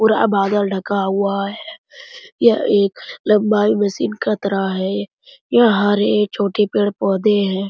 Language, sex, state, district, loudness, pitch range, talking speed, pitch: Hindi, male, Jharkhand, Sahebganj, -17 LUFS, 200-215 Hz, 140 wpm, 205 Hz